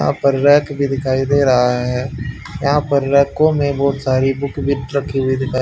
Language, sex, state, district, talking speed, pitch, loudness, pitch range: Hindi, male, Haryana, Rohtak, 190 wpm, 140 Hz, -16 LUFS, 130-140 Hz